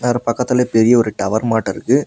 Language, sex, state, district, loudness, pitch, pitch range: Tamil, male, Tamil Nadu, Nilgiris, -16 LUFS, 115 Hz, 110-125 Hz